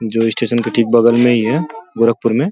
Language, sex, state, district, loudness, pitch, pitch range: Hindi, male, Uttar Pradesh, Gorakhpur, -14 LUFS, 115 Hz, 115-120 Hz